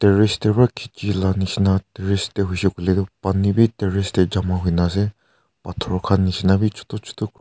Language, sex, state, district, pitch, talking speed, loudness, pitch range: Nagamese, male, Nagaland, Kohima, 95 Hz, 195 wpm, -20 LUFS, 95-105 Hz